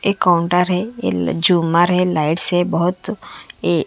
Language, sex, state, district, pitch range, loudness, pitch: Hindi, female, Haryana, Charkhi Dadri, 170-180 Hz, -16 LUFS, 175 Hz